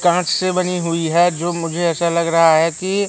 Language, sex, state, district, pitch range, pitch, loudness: Hindi, male, Madhya Pradesh, Katni, 165-180 Hz, 170 Hz, -17 LUFS